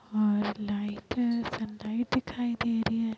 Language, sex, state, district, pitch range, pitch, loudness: Hindi, female, Bihar, Muzaffarpur, 210-240 Hz, 225 Hz, -30 LUFS